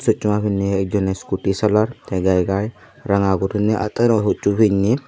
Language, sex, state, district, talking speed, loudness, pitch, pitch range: Chakma, male, Tripura, Unakoti, 155 wpm, -19 LUFS, 105 Hz, 95-110 Hz